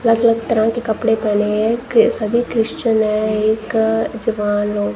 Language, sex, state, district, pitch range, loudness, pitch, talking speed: Hindi, female, Punjab, Kapurthala, 215-230 Hz, -17 LUFS, 220 Hz, 170 wpm